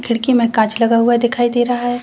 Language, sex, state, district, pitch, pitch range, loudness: Hindi, female, Chhattisgarh, Bilaspur, 240 Hz, 230-245 Hz, -15 LUFS